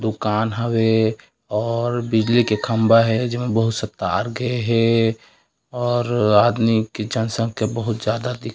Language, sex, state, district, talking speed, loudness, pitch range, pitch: Chhattisgarhi, male, Chhattisgarh, Raigarh, 140 wpm, -20 LUFS, 110-120 Hz, 115 Hz